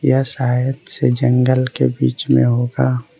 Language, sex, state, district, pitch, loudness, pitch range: Hindi, male, Arunachal Pradesh, Lower Dibang Valley, 125 Hz, -17 LUFS, 120-130 Hz